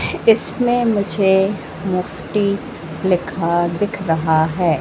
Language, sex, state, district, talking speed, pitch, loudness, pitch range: Hindi, female, Madhya Pradesh, Katni, 85 wpm, 190 Hz, -18 LUFS, 165-205 Hz